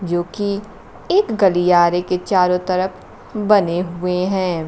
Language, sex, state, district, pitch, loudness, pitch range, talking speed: Hindi, female, Bihar, Kaimur, 185 Hz, -18 LUFS, 175-200 Hz, 130 wpm